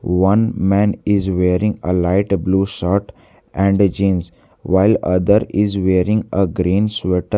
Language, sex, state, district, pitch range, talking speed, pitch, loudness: English, male, Jharkhand, Garhwa, 90-100 Hz, 140 wpm, 95 Hz, -16 LUFS